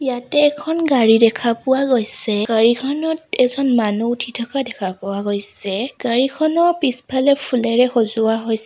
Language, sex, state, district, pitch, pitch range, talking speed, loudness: Assamese, female, Assam, Sonitpur, 245 Hz, 225-275 Hz, 140 wpm, -18 LUFS